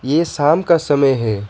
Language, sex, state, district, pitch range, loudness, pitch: Hindi, male, West Bengal, Alipurduar, 130-165 Hz, -15 LUFS, 145 Hz